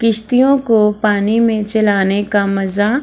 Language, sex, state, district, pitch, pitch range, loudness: Hindi, female, Bihar, Samastipur, 215 Hz, 205-230 Hz, -14 LUFS